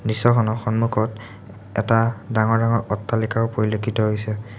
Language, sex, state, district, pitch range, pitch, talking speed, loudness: Assamese, male, Assam, Sonitpur, 110-115 Hz, 110 Hz, 105 wpm, -21 LUFS